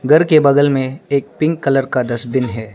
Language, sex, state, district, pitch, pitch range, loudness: Hindi, male, Arunachal Pradesh, Lower Dibang Valley, 135 Hz, 130-150 Hz, -15 LUFS